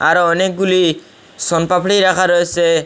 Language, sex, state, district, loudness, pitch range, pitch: Bengali, male, Assam, Hailakandi, -14 LUFS, 170-185 Hz, 180 Hz